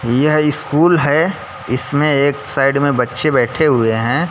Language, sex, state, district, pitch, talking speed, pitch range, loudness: Hindi, male, Gujarat, Gandhinagar, 145 Hz, 155 wpm, 125-155 Hz, -14 LUFS